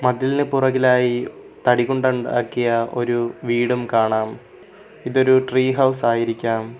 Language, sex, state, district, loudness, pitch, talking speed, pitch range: Malayalam, male, Kerala, Kollam, -19 LUFS, 125 Hz, 105 wpm, 120-130 Hz